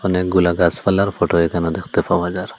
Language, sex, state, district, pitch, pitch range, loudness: Bengali, male, Assam, Hailakandi, 90 Hz, 85-95 Hz, -17 LUFS